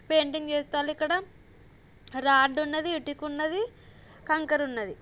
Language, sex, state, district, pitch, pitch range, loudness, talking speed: Telugu, female, Andhra Pradesh, Guntur, 305 Hz, 290-315 Hz, -28 LUFS, 110 wpm